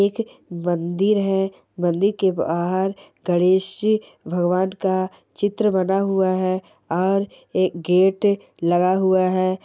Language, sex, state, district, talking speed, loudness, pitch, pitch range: Hindi, female, Bihar, Bhagalpur, 125 wpm, -21 LUFS, 190 Hz, 180-195 Hz